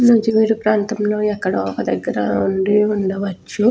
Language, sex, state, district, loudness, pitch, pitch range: Telugu, female, Telangana, Nalgonda, -18 LUFS, 210 Hz, 190-215 Hz